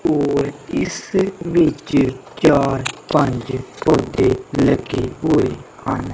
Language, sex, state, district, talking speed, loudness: Punjabi, male, Punjab, Kapurthala, 90 wpm, -19 LUFS